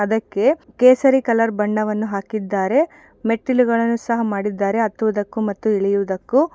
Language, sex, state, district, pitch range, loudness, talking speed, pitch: Kannada, female, Karnataka, Shimoga, 205-250 Hz, -19 LUFS, 120 wpm, 220 Hz